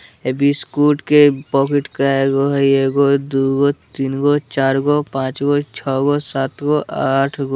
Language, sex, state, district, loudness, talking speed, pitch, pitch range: Bajjika, male, Bihar, Vaishali, -16 LUFS, 120 wpm, 140 Hz, 135-145 Hz